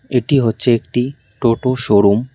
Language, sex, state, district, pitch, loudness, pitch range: Bengali, male, West Bengal, Cooch Behar, 125 Hz, -15 LUFS, 115-130 Hz